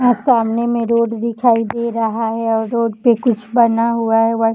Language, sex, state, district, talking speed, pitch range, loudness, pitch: Hindi, female, Bihar, Darbhanga, 225 wpm, 225-235 Hz, -16 LUFS, 230 Hz